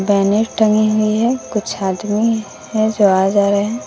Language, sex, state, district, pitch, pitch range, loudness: Hindi, female, Bihar, West Champaran, 215 Hz, 200-220 Hz, -16 LUFS